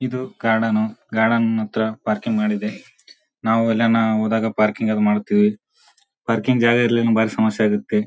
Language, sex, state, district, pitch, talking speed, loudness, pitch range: Kannada, male, Karnataka, Bijapur, 110 Hz, 135 wpm, -19 LUFS, 110-115 Hz